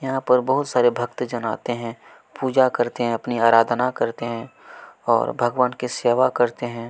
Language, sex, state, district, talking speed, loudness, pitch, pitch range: Hindi, male, Chhattisgarh, Kabirdham, 180 wpm, -21 LUFS, 120 Hz, 120-130 Hz